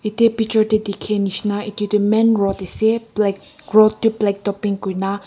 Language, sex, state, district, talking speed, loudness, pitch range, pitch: Nagamese, female, Nagaland, Kohima, 205 wpm, -18 LUFS, 200-220 Hz, 210 Hz